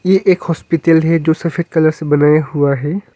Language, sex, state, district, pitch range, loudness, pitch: Hindi, male, Arunachal Pradesh, Longding, 155-170 Hz, -14 LUFS, 165 Hz